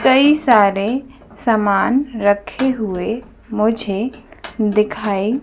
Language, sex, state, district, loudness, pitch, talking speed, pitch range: Hindi, female, Madhya Pradesh, Dhar, -17 LUFS, 225 Hz, 75 wpm, 210-260 Hz